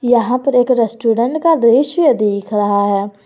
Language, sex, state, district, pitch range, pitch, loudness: Hindi, female, Jharkhand, Garhwa, 205-255 Hz, 235 Hz, -14 LUFS